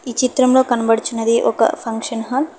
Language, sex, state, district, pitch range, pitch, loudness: Telugu, female, Telangana, Hyderabad, 225-255 Hz, 240 Hz, -17 LUFS